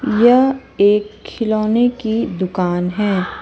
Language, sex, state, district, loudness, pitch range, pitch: Hindi, female, Chhattisgarh, Raipur, -16 LUFS, 195-240 Hz, 215 Hz